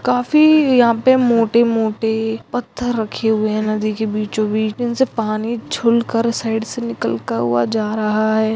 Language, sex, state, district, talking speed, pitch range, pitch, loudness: Hindi, female, Goa, North and South Goa, 155 wpm, 215-235 Hz, 225 Hz, -17 LUFS